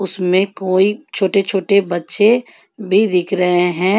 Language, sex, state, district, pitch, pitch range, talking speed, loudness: Hindi, female, Jharkhand, Ranchi, 195 Hz, 185-205 Hz, 120 wpm, -15 LUFS